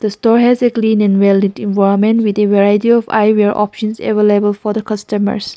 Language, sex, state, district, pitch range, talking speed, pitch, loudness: English, female, Nagaland, Kohima, 205-220 Hz, 195 wpm, 210 Hz, -13 LUFS